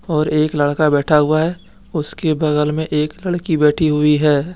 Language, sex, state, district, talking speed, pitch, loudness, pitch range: Hindi, male, Jharkhand, Deoghar, 185 wpm, 155 Hz, -16 LUFS, 150-160 Hz